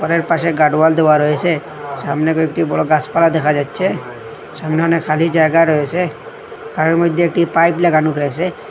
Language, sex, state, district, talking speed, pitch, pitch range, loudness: Bengali, male, Assam, Hailakandi, 165 wpm, 160 Hz, 150-170 Hz, -15 LUFS